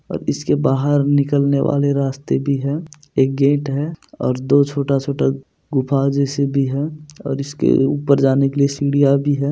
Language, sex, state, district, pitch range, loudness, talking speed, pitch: Hindi, male, Bihar, Supaul, 135-145 Hz, -18 LUFS, 175 wpm, 140 Hz